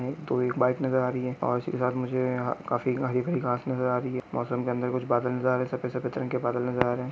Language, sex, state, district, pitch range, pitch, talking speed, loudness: Hindi, male, Maharashtra, Nagpur, 125-130 Hz, 125 Hz, 305 wpm, -28 LUFS